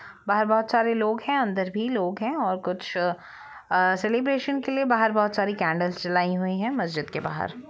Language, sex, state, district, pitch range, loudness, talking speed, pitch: Hindi, female, Jharkhand, Jamtara, 180-235 Hz, -25 LUFS, 195 wpm, 210 Hz